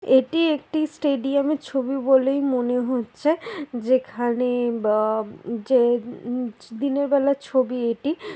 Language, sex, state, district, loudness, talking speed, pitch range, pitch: Bengali, female, West Bengal, Malda, -23 LUFS, 120 wpm, 240-280 Hz, 260 Hz